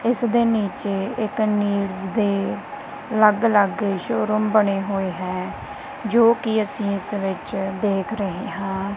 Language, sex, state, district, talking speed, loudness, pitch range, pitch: Punjabi, female, Punjab, Kapurthala, 135 wpm, -22 LUFS, 195-220 Hz, 205 Hz